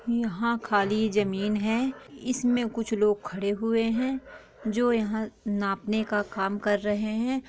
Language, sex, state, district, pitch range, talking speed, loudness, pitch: Hindi, female, Chhattisgarh, Korba, 205-235 Hz, 145 wpm, -27 LUFS, 220 Hz